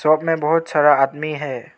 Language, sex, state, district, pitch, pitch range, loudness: Hindi, male, Arunachal Pradesh, Lower Dibang Valley, 155 Hz, 150-160 Hz, -18 LUFS